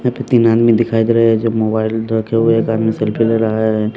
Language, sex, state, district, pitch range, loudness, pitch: Hindi, male, Bihar, West Champaran, 110-115 Hz, -14 LUFS, 115 Hz